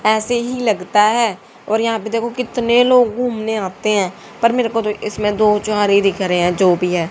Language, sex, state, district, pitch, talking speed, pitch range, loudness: Hindi, female, Haryana, Rohtak, 215 Hz, 220 wpm, 200-235 Hz, -16 LUFS